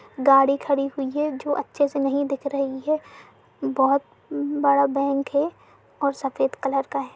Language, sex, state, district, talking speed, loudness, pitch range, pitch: Hindi, female, Uttar Pradesh, Jalaun, 170 wpm, -23 LUFS, 275-285 Hz, 275 Hz